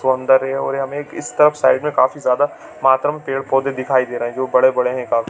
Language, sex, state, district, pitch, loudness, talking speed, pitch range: Hindi, male, Chhattisgarh, Bilaspur, 130 Hz, -17 LUFS, 225 wpm, 130-135 Hz